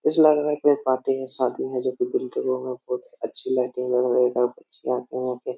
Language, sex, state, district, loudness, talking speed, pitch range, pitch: Hindi, male, Jharkhand, Jamtara, -24 LUFS, 195 wpm, 125-140 Hz, 130 Hz